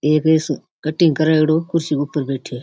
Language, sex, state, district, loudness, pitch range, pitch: Rajasthani, female, Rajasthan, Nagaur, -18 LUFS, 145-160 Hz, 155 Hz